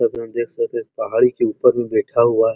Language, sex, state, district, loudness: Hindi, male, Uttar Pradesh, Muzaffarnagar, -19 LUFS